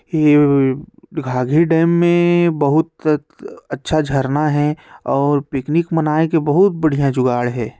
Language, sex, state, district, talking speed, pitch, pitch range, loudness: Chhattisgarhi, male, Chhattisgarh, Sarguja, 130 wpm, 150 Hz, 140-165 Hz, -16 LUFS